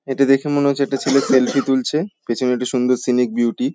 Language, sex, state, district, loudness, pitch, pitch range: Bengali, male, West Bengal, Paschim Medinipur, -18 LUFS, 135 Hz, 125-140 Hz